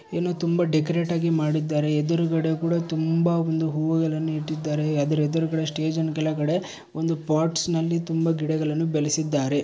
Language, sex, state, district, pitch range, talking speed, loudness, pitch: Kannada, male, Karnataka, Bellary, 155-165 Hz, 125 wpm, -24 LUFS, 160 Hz